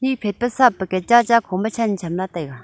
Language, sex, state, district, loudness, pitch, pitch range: Wancho, female, Arunachal Pradesh, Longding, -19 LUFS, 210 Hz, 185-240 Hz